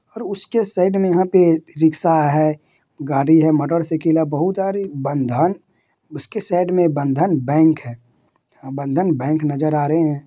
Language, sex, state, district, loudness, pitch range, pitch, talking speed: Hindi, male, Bihar, Madhepura, -18 LUFS, 145-180 Hz, 160 Hz, 160 wpm